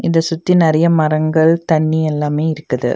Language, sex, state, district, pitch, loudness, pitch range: Tamil, female, Tamil Nadu, Nilgiris, 160 Hz, -15 LUFS, 155-165 Hz